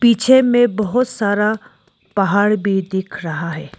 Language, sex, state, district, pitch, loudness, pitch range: Hindi, female, Arunachal Pradesh, Lower Dibang Valley, 205 Hz, -16 LUFS, 190-240 Hz